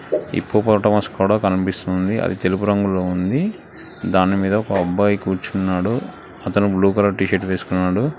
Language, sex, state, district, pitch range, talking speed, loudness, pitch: Telugu, male, Telangana, Hyderabad, 95-105 Hz, 125 wpm, -19 LUFS, 95 Hz